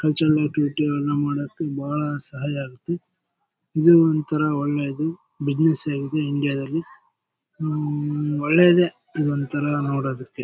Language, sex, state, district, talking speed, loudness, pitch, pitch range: Kannada, male, Karnataka, Bellary, 110 wpm, -22 LUFS, 150 Hz, 145-155 Hz